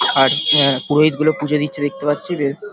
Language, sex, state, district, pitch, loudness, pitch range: Bengali, male, West Bengal, Paschim Medinipur, 145 Hz, -16 LUFS, 140-155 Hz